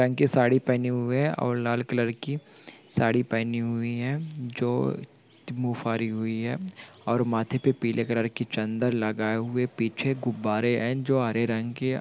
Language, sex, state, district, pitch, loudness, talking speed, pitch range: Hindi, male, Andhra Pradesh, Anantapur, 120 Hz, -27 LUFS, 170 wpm, 115-130 Hz